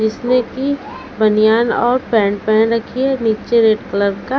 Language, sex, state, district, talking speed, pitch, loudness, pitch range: Hindi, female, Chhattisgarh, Raipur, 165 wpm, 230 Hz, -15 LUFS, 215-250 Hz